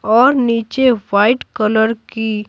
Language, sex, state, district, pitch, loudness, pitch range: Hindi, female, Bihar, Patna, 225 Hz, -15 LUFS, 215-240 Hz